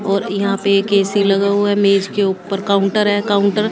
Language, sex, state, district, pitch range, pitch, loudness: Hindi, female, Haryana, Jhajjar, 195-205 Hz, 200 Hz, -16 LUFS